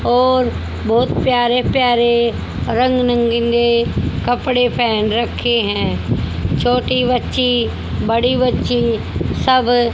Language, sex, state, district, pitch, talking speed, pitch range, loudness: Hindi, female, Haryana, Jhajjar, 240 Hz, 90 wpm, 235-250 Hz, -16 LUFS